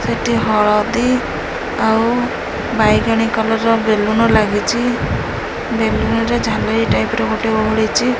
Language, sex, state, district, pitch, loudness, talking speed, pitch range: Odia, female, Odisha, Khordha, 225 Hz, -16 LUFS, 110 wpm, 220-235 Hz